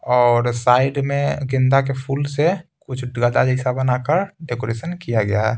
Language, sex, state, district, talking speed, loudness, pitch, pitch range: Hindi, male, Bihar, Patna, 150 wpm, -19 LUFS, 130 Hz, 120-140 Hz